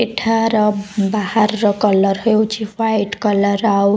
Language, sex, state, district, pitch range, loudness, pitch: Odia, female, Odisha, Khordha, 200-220 Hz, -16 LUFS, 210 Hz